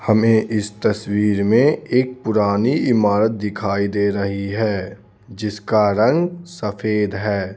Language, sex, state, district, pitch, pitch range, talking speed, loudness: Hindi, male, Bihar, Patna, 105 Hz, 100-110 Hz, 120 wpm, -19 LUFS